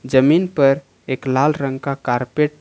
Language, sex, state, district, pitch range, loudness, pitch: Hindi, male, Jharkhand, Ranchi, 130-150 Hz, -18 LUFS, 135 Hz